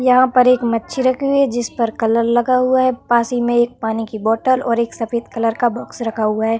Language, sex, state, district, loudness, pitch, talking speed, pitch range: Hindi, female, Uttar Pradesh, Varanasi, -17 LUFS, 240 Hz, 265 wpm, 230-255 Hz